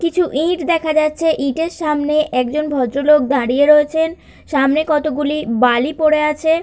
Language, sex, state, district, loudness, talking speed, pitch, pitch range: Bengali, female, West Bengal, Kolkata, -16 LUFS, 135 wpm, 300 Hz, 280-320 Hz